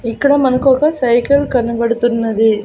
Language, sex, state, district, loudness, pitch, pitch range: Telugu, female, Andhra Pradesh, Annamaya, -14 LUFS, 245 Hz, 230-270 Hz